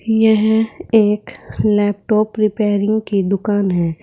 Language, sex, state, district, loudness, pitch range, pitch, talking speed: Hindi, female, Uttar Pradesh, Saharanpur, -16 LUFS, 205-220 Hz, 215 Hz, 105 wpm